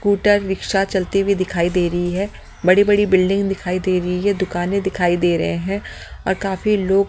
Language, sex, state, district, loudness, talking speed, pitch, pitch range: Hindi, female, Delhi, New Delhi, -18 LUFS, 185 wpm, 190 Hz, 180-200 Hz